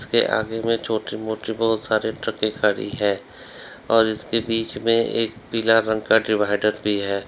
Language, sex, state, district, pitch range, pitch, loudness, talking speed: Hindi, male, Uttar Pradesh, Lalitpur, 105-115 Hz, 110 Hz, -21 LUFS, 175 wpm